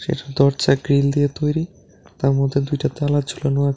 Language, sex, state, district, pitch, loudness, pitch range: Bengali, male, Tripura, West Tripura, 140 Hz, -20 LUFS, 135-145 Hz